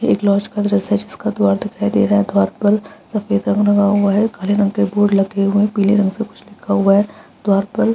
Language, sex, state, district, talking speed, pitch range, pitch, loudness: Hindi, female, Bihar, Araria, 265 wpm, 195-205 Hz, 200 Hz, -16 LUFS